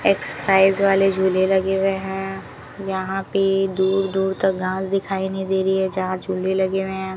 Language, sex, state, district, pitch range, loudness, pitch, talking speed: Hindi, female, Rajasthan, Bikaner, 190-195 Hz, -20 LUFS, 190 Hz, 185 wpm